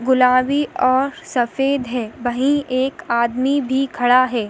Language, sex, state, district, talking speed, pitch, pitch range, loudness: Hindi, female, Maharashtra, Sindhudurg, 135 wpm, 255 Hz, 245-275 Hz, -18 LUFS